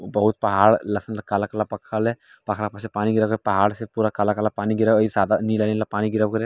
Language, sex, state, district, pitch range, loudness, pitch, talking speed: Hindi, male, Bihar, Jamui, 105-110 Hz, -22 LUFS, 110 Hz, 290 wpm